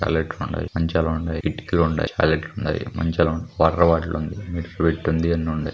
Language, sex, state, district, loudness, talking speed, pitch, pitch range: Telugu, male, Andhra Pradesh, Krishna, -22 LUFS, 135 wpm, 80 Hz, 80-85 Hz